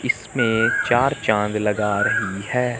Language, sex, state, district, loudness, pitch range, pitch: Hindi, male, Chandigarh, Chandigarh, -20 LUFS, 105-120 Hz, 110 Hz